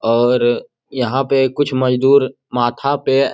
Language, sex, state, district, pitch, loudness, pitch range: Hindi, male, Bihar, Jamui, 130 Hz, -16 LUFS, 125-135 Hz